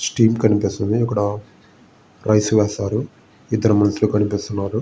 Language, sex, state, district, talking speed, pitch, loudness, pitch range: Telugu, male, Andhra Pradesh, Visakhapatnam, 100 wpm, 105 Hz, -19 LUFS, 105-110 Hz